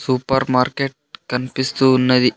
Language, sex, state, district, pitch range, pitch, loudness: Telugu, male, Andhra Pradesh, Sri Satya Sai, 125-135 Hz, 130 Hz, -18 LUFS